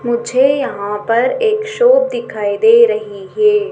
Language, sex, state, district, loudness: Hindi, female, Madhya Pradesh, Dhar, -14 LUFS